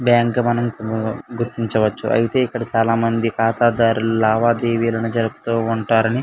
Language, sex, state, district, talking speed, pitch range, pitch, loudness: Telugu, male, Andhra Pradesh, Anantapur, 115 wpm, 115-120 Hz, 115 Hz, -19 LUFS